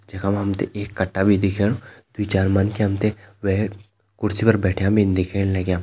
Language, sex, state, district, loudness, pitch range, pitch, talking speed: Hindi, male, Uttarakhand, Tehri Garhwal, -21 LUFS, 95-105 Hz, 100 Hz, 205 wpm